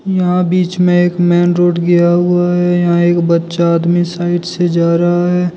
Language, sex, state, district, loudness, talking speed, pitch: Hindi, male, Jharkhand, Deoghar, -12 LUFS, 195 wpm, 175 Hz